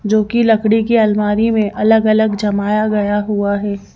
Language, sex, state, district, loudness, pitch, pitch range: Hindi, female, Madhya Pradesh, Bhopal, -14 LUFS, 215 Hz, 205-220 Hz